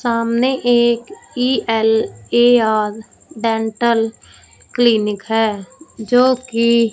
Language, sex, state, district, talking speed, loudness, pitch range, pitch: Hindi, female, Punjab, Fazilka, 70 wpm, -16 LUFS, 220-245 Hz, 230 Hz